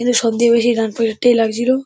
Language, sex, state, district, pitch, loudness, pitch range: Bengali, male, West Bengal, Dakshin Dinajpur, 235 Hz, -15 LUFS, 225-245 Hz